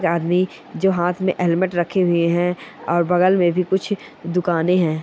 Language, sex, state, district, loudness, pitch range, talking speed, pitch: Bhojpuri, female, Bihar, Saran, -19 LUFS, 170-185 Hz, 190 wpm, 180 Hz